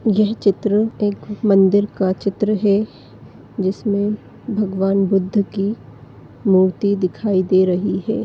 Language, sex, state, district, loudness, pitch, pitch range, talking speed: Hindi, female, Uttar Pradesh, Deoria, -18 LUFS, 200 Hz, 195-210 Hz, 115 wpm